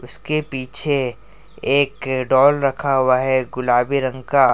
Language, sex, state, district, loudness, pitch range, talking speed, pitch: Hindi, male, Jharkhand, Ranchi, -18 LUFS, 130-140 Hz, 130 wpm, 130 Hz